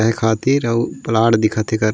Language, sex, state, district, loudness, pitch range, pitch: Chhattisgarhi, male, Chhattisgarh, Raigarh, -17 LUFS, 110-115 Hz, 110 Hz